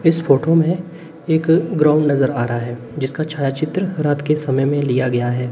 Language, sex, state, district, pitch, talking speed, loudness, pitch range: Hindi, male, Himachal Pradesh, Shimla, 150 Hz, 195 wpm, -18 LUFS, 130-165 Hz